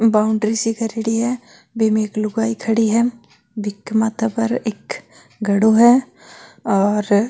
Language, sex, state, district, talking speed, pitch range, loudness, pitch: Marwari, female, Rajasthan, Nagaur, 140 wpm, 215-230 Hz, -18 LUFS, 225 Hz